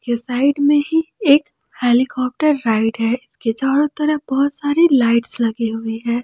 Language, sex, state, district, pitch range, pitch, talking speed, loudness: Hindi, female, Jharkhand, Palamu, 235-290 Hz, 260 Hz, 155 wpm, -17 LUFS